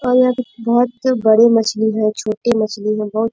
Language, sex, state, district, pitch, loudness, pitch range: Hindi, female, Bihar, Bhagalpur, 225 Hz, -16 LUFS, 215-245 Hz